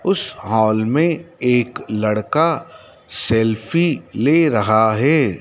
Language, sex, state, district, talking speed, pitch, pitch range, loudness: Hindi, male, Madhya Pradesh, Dhar, 100 wpm, 120 Hz, 110-160 Hz, -17 LUFS